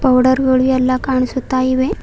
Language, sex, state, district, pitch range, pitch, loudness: Kannada, female, Karnataka, Bidar, 255-260 Hz, 260 Hz, -15 LUFS